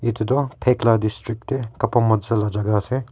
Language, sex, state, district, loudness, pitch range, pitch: Nagamese, male, Nagaland, Kohima, -21 LUFS, 110-125 Hz, 115 Hz